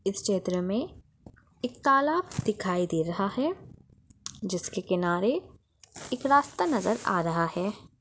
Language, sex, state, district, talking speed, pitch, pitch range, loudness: Hindi, female, Chhattisgarh, Bastar, 125 wpm, 200 Hz, 180-255 Hz, -28 LUFS